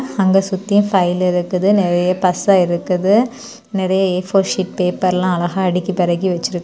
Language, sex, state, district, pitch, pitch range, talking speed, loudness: Tamil, female, Tamil Nadu, Kanyakumari, 185 Hz, 180-195 Hz, 145 wpm, -16 LUFS